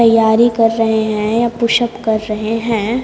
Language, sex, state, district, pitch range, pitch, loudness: Hindi, female, Haryana, Jhajjar, 220-235 Hz, 225 Hz, -14 LUFS